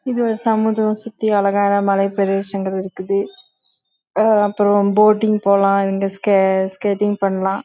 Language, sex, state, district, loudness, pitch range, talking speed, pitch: Tamil, female, Karnataka, Chamarajanagar, -17 LUFS, 195-215 Hz, 85 wpm, 200 Hz